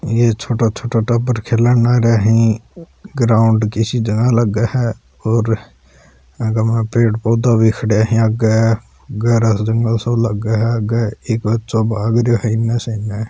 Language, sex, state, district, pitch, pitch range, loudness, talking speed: Hindi, male, Rajasthan, Churu, 115 Hz, 110-115 Hz, -16 LUFS, 160 wpm